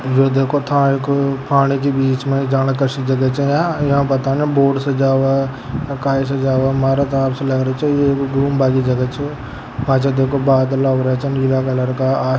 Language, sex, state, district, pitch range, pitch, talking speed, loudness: Hindi, male, Rajasthan, Nagaur, 130-140 Hz, 135 Hz, 200 wpm, -16 LUFS